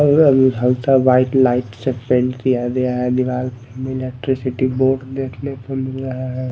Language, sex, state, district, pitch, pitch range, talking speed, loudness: Hindi, male, Odisha, Malkangiri, 130 Hz, 125-130 Hz, 175 wpm, -18 LUFS